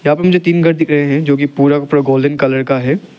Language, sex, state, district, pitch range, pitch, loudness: Hindi, male, Arunachal Pradesh, Lower Dibang Valley, 140-160 Hz, 145 Hz, -12 LUFS